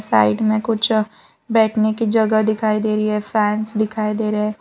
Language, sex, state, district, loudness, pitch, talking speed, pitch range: Hindi, female, Gujarat, Valsad, -18 LUFS, 215 Hz, 195 wpm, 210-220 Hz